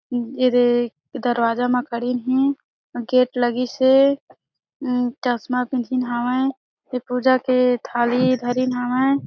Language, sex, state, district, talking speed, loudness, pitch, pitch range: Chhattisgarhi, female, Chhattisgarh, Sarguja, 125 wpm, -20 LUFS, 250 Hz, 245-255 Hz